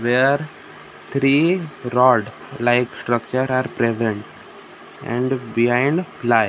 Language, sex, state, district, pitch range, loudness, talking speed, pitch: Hindi, male, Maharashtra, Gondia, 120-135 Hz, -19 LUFS, 100 wpm, 125 Hz